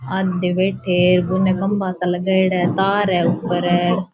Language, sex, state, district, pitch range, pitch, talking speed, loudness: Rajasthani, female, Rajasthan, Churu, 175-190 Hz, 185 Hz, 190 wpm, -18 LUFS